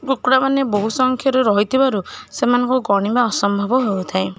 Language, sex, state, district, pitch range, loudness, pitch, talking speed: Odia, female, Odisha, Khordha, 205-260 Hz, -17 LUFS, 245 Hz, 125 wpm